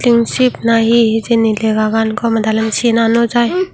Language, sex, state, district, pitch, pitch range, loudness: Chakma, female, Tripura, Unakoti, 230 Hz, 220-235 Hz, -13 LUFS